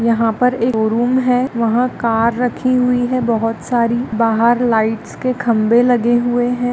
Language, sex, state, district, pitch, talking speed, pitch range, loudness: Hindi, female, Andhra Pradesh, Chittoor, 240 Hz, 160 wpm, 230-250 Hz, -16 LUFS